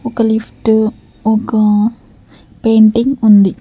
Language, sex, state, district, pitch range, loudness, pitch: Telugu, female, Andhra Pradesh, Sri Satya Sai, 215-230 Hz, -12 LUFS, 220 Hz